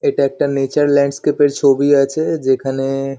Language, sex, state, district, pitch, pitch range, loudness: Bengali, male, West Bengal, Kolkata, 140 Hz, 135-145 Hz, -15 LUFS